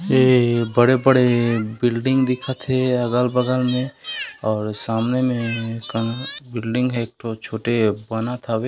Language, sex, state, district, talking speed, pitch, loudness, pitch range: Chhattisgarhi, male, Chhattisgarh, Raigarh, 125 wpm, 120 Hz, -20 LUFS, 115-125 Hz